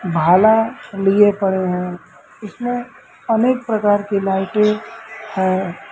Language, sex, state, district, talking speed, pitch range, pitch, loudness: Hindi, male, Uttar Pradesh, Lucknow, 100 wpm, 190-225 Hz, 205 Hz, -17 LUFS